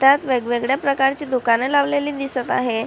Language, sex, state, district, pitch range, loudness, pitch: Marathi, female, Maharashtra, Chandrapur, 250-280 Hz, -19 LUFS, 270 Hz